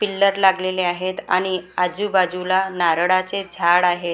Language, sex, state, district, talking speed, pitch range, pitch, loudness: Marathi, female, Maharashtra, Gondia, 115 wpm, 180-190 Hz, 185 Hz, -19 LUFS